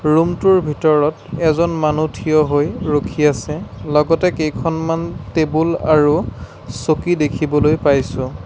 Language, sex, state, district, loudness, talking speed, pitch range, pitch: Assamese, male, Assam, Sonitpur, -17 LUFS, 105 wpm, 150-165 Hz, 155 Hz